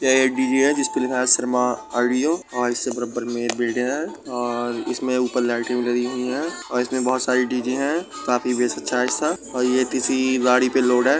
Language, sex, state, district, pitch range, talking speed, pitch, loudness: Hindi, male, Uttar Pradesh, Budaun, 125-130 Hz, 220 wpm, 125 Hz, -21 LUFS